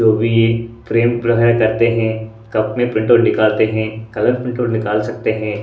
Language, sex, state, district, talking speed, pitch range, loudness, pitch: Hindi, male, Odisha, Sambalpur, 170 wpm, 110-115 Hz, -16 LUFS, 110 Hz